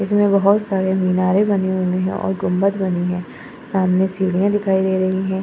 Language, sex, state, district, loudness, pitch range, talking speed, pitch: Hindi, female, Uttar Pradesh, Etah, -18 LUFS, 185-200 Hz, 185 wpm, 190 Hz